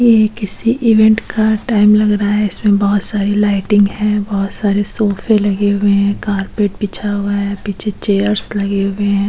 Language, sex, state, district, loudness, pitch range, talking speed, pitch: Hindi, female, Goa, North and South Goa, -14 LUFS, 200-210 Hz, 180 wpm, 205 Hz